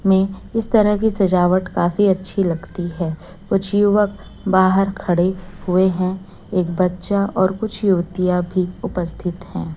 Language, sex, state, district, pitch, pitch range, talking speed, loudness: Hindi, female, Chhattisgarh, Raipur, 185 Hz, 180-200 Hz, 160 wpm, -19 LUFS